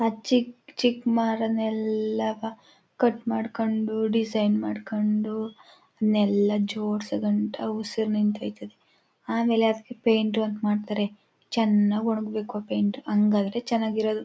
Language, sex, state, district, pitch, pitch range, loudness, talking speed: Kannada, female, Karnataka, Chamarajanagar, 220 Hz, 210-225 Hz, -26 LUFS, 80 wpm